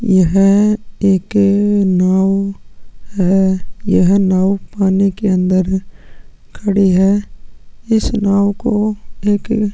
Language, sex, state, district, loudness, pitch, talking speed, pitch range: Hindi, male, Chhattisgarh, Sukma, -14 LUFS, 195 Hz, 90 wpm, 190-205 Hz